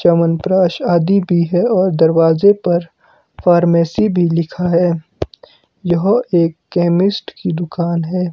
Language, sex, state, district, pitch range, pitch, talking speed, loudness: Hindi, male, Himachal Pradesh, Shimla, 170-185 Hz, 175 Hz, 120 wpm, -15 LUFS